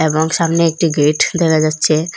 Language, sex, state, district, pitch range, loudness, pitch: Bengali, female, Assam, Hailakandi, 155-165 Hz, -14 LUFS, 160 Hz